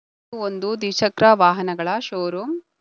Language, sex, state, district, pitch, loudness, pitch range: Kannada, female, Karnataka, Bangalore, 205 Hz, -20 LUFS, 180-225 Hz